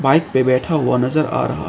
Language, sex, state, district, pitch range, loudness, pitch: Hindi, male, Assam, Kamrup Metropolitan, 130-155 Hz, -17 LUFS, 135 Hz